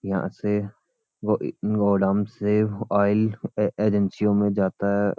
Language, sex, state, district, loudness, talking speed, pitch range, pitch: Hindi, male, Uttarakhand, Uttarkashi, -23 LUFS, 105 wpm, 100-105 Hz, 100 Hz